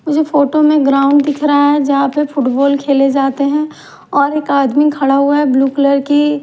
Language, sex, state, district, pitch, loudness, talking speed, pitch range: Hindi, female, Maharashtra, Mumbai Suburban, 285 Hz, -12 LUFS, 205 wpm, 275-295 Hz